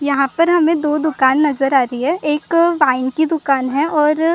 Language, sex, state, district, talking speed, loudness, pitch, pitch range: Hindi, female, Maharashtra, Gondia, 205 wpm, -15 LUFS, 300 Hz, 275-320 Hz